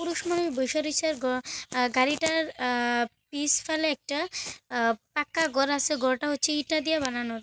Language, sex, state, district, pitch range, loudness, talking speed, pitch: Bengali, female, West Bengal, Kolkata, 255-315 Hz, -27 LUFS, 160 wpm, 290 Hz